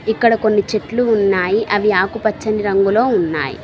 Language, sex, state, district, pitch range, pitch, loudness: Telugu, female, Telangana, Mahabubabad, 195-220 Hz, 210 Hz, -16 LUFS